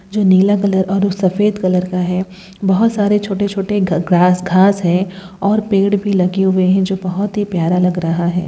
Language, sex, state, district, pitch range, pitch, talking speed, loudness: Hindi, female, Bihar, Saran, 180-200 Hz, 190 Hz, 205 wpm, -15 LUFS